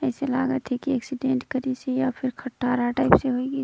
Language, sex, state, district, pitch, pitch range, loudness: Surgujia, female, Chhattisgarh, Sarguja, 260 Hz, 255-265 Hz, -25 LUFS